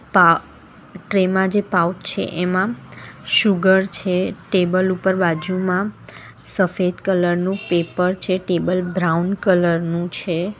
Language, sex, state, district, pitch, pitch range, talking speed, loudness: Gujarati, female, Gujarat, Valsad, 185 Hz, 175-190 Hz, 125 wpm, -19 LUFS